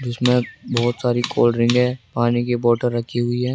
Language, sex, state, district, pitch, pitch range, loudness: Hindi, male, Rajasthan, Jaipur, 120 Hz, 120-125 Hz, -20 LUFS